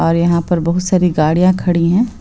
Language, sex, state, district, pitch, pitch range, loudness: Hindi, female, Bihar, Purnia, 175 Hz, 170-180 Hz, -14 LUFS